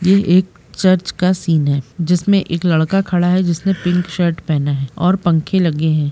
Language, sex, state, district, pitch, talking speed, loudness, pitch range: Hindi, female, Jharkhand, Jamtara, 175 Hz, 195 wpm, -16 LUFS, 160-185 Hz